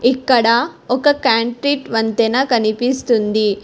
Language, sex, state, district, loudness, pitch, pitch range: Telugu, female, Telangana, Hyderabad, -16 LUFS, 240 Hz, 225-260 Hz